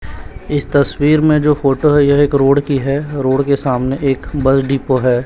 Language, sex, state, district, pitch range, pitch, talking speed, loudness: Hindi, male, Chhattisgarh, Raipur, 135-145 Hz, 140 Hz, 195 wpm, -14 LUFS